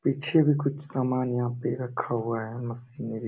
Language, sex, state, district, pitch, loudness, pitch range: Hindi, male, Uttar Pradesh, Jalaun, 125 Hz, -28 LUFS, 115-140 Hz